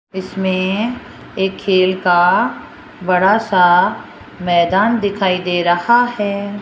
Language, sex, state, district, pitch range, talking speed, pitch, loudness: Hindi, female, Rajasthan, Jaipur, 180-205 Hz, 100 wpm, 190 Hz, -15 LUFS